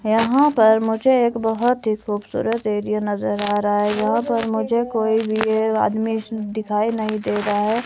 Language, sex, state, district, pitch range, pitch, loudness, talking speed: Hindi, female, Himachal Pradesh, Shimla, 210-225 Hz, 220 Hz, -20 LUFS, 185 wpm